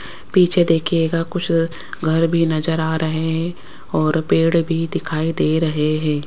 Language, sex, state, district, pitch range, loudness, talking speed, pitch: Hindi, female, Rajasthan, Jaipur, 160-165 Hz, -19 LUFS, 155 wpm, 165 Hz